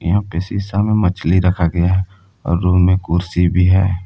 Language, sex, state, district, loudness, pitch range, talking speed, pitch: Hindi, male, Jharkhand, Palamu, -16 LUFS, 85-95 Hz, 205 wpm, 90 Hz